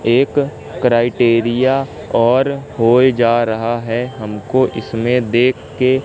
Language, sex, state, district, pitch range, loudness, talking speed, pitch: Hindi, male, Madhya Pradesh, Katni, 115-130 Hz, -15 LUFS, 100 wpm, 120 Hz